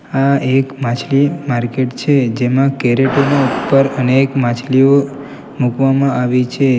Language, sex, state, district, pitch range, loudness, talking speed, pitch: Gujarati, male, Gujarat, Valsad, 125-140 Hz, -14 LUFS, 125 wpm, 135 Hz